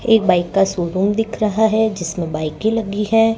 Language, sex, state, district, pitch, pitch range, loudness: Hindi, male, Rajasthan, Bikaner, 210 Hz, 175-220 Hz, -18 LUFS